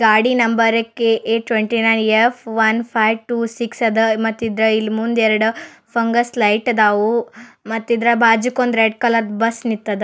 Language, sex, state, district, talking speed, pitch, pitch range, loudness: Kannada, male, Karnataka, Bijapur, 150 wpm, 225 Hz, 220-235 Hz, -16 LUFS